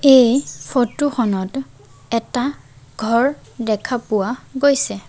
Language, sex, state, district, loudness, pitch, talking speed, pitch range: Assamese, female, Assam, Sonitpur, -19 LUFS, 245 Hz, 95 wpm, 225-270 Hz